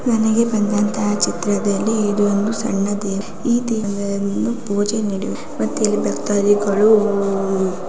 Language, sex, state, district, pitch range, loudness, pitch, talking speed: Kannada, female, Karnataka, Raichur, 200-220 Hz, -18 LUFS, 205 Hz, 115 wpm